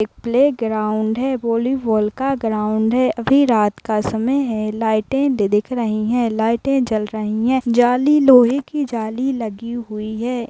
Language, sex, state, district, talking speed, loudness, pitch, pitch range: Hindi, female, Rajasthan, Nagaur, 160 wpm, -18 LUFS, 235 Hz, 215-260 Hz